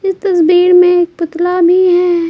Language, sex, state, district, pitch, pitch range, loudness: Hindi, female, Bihar, Patna, 355 Hz, 345-360 Hz, -10 LUFS